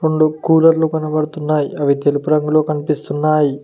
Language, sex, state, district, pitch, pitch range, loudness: Telugu, male, Telangana, Mahabubabad, 155 Hz, 150-155 Hz, -16 LUFS